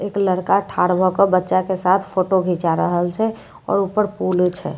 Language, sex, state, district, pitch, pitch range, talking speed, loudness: Maithili, female, Bihar, Katihar, 185 Hz, 180-195 Hz, 200 wpm, -19 LUFS